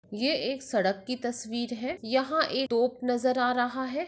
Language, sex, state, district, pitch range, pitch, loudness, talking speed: Hindi, female, Maharashtra, Nagpur, 240-265 Hz, 250 Hz, -28 LUFS, 190 wpm